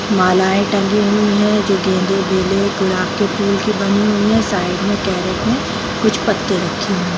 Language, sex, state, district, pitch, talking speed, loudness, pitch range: Hindi, female, Bihar, Jamui, 200 Hz, 190 wpm, -16 LUFS, 190-205 Hz